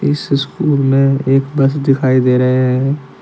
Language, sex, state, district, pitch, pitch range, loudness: Hindi, male, Jharkhand, Deoghar, 135 Hz, 130-140 Hz, -14 LUFS